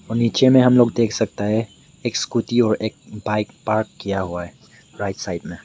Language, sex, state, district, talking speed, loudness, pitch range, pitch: Hindi, male, Meghalaya, West Garo Hills, 210 wpm, -20 LUFS, 105-120 Hz, 110 Hz